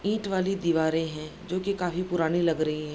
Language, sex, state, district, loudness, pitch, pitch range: Hindi, female, Bihar, Darbhanga, -27 LUFS, 175 Hz, 160-190 Hz